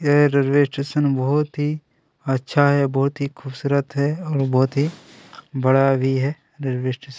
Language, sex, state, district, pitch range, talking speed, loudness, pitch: Hindi, male, Chhattisgarh, Kabirdham, 135-145 Hz, 165 wpm, -20 LUFS, 140 Hz